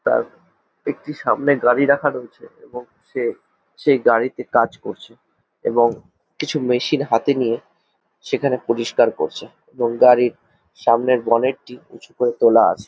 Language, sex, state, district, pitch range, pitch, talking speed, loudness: Bengali, male, West Bengal, Jhargram, 120-140 Hz, 125 Hz, 140 wpm, -19 LUFS